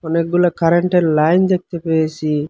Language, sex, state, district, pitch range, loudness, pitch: Bengali, male, Assam, Hailakandi, 160-175 Hz, -16 LUFS, 165 Hz